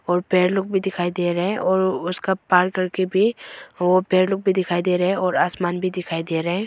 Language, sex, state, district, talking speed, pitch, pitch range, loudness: Hindi, female, Arunachal Pradesh, Longding, 250 wpm, 185 Hz, 180-190 Hz, -21 LUFS